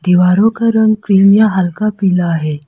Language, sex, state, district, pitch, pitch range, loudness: Hindi, female, Arunachal Pradesh, Lower Dibang Valley, 195 Hz, 180-215 Hz, -12 LUFS